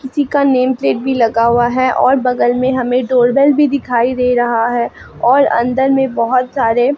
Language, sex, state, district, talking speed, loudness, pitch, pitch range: Hindi, female, Bihar, Katihar, 215 wpm, -13 LUFS, 255 Hz, 240-265 Hz